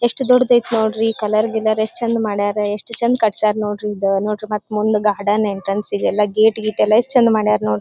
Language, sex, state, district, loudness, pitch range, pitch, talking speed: Kannada, female, Karnataka, Dharwad, -17 LUFS, 210-225 Hz, 215 Hz, 200 wpm